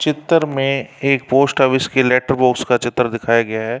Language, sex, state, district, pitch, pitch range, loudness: Hindi, male, Uttar Pradesh, Varanasi, 130 Hz, 125-135 Hz, -16 LUFS